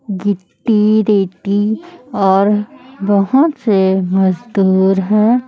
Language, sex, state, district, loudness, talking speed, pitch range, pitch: Hindi, female, Chhattisgarh, Raipur, -14 LUFS, 75 wpm, 190-220 Hz, 205 Hz